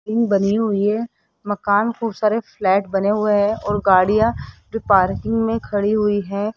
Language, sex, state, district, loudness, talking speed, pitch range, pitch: Hindi, female, Rajasthan, Jaipur, -19 LUFS, 165 wpm, 200-220 Hz, 205 Hz